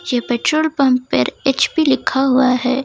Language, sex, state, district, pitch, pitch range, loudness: Hindi, female, Jharkhand, Ranchi, 265 Hz, 255-290 Hz, -16 LUFS